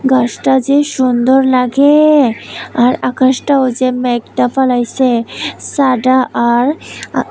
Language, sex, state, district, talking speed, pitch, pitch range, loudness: Bengali, female, Tripura, West Tripura, 100 wpm, 255 Hz, 245-270 Hz, -12 LUFS